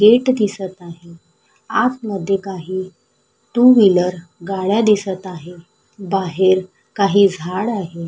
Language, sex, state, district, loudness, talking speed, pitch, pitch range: Marathi, female, Maharashtra, Sindhudurg, -17 LUFS, 105 wpm, 190 Hz, 180-205 Hz